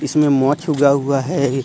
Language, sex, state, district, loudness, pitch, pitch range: Hindi, male, Jharkhand, Deoghar, -16 LUFS, 140 Hz, 135-150 Hz